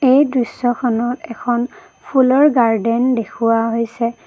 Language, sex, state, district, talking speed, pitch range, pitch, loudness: Assamese, female, Assam, Kamrup Metropolitan, 100 wpm, 230-255 Hz, 240 Hz, -16 LUFS